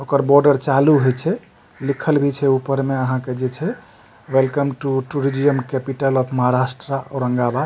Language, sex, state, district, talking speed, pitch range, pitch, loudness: Maithili, male, Bihar, Supaul, 170 wpm, 130-140 Hz, 135 Hz, -19 LUFS